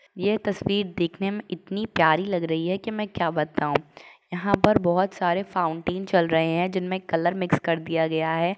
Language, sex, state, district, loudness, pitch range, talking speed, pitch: Hindi, female, Uttar Pradesh, Jalaun, -24 LUFS, 165-195 Hz, 195 wpm, 180 Hz